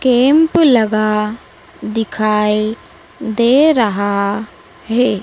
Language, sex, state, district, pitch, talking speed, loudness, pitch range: Hindi, female, Madhya Pradesh, Dhar, 220 Hz, 70 wpm, -14 LUFS, 210-250 Hz